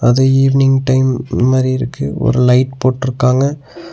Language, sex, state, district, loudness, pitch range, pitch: Tamil, male, Tamil Nadu, Nilgiris, -13 LUFS, 125-135 Hz, 130 Hz